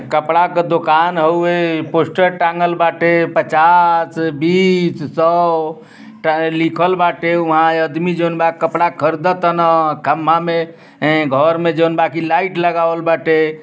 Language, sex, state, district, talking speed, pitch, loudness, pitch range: Bhojpuri, male, Uttar Pradesh, Ghazipur, 130 wpm, 165 Hz, -14 LUFS, 160-170 Hz